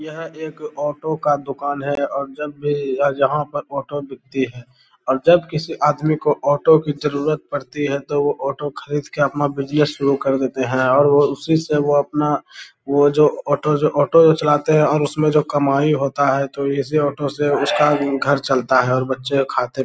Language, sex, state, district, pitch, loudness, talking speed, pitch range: Hindi, male, Bihar, Lakhisarai, 145 Hz, -18 LUFS, 195 wpm, 140-150 Hz